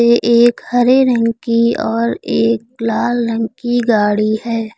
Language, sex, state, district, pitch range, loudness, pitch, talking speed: Hindi, female, Uttar Pradesh, Lucknow, 225-240 Hz, -14 LUFS, 230 Hz, 150 wpm